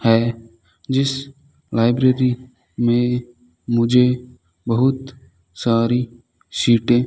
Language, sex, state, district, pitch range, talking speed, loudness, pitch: Hindi, male, Rajasthan, Bikaner, 115-125 Hz, 75 wpm, -19 LUFS, 120 Hz